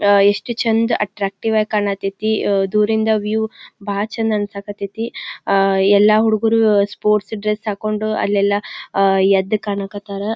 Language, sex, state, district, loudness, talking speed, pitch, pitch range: Kannada, female, Karnataka, Belgaum, -18 LUFS, 135 wpm, 210 Hz, 200-220 Hz